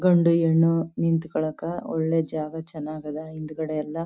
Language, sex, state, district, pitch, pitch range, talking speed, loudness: Kannada, female, Karnataka, Chamarajanagar, 160 Hz, 155-165 Hz, 120 wpm, -25 LUFS